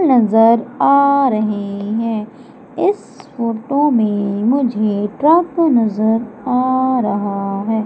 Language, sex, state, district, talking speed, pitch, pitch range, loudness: Hindi, female, Madhya Pradesh, Umaria, 100 wpm, 230 Hz, 215-265 Hz, -16 LUFS